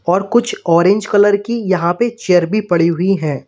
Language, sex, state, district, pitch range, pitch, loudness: Hindi, male, Uttar Pradesh, Lalitpur, 175-215 Hz, 190 Hz, -14 LUFS